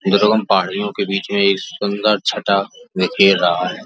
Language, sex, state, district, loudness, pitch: Hindi, male, Uttar Pradesh, Jalaun, -16 LUFS, 175 Hz